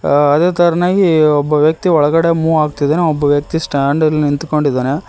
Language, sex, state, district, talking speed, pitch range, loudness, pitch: Kannada, male, Karnataka, Koppal, 140 wpm, 145-165 Hz, -13 LUFS, 155 Hz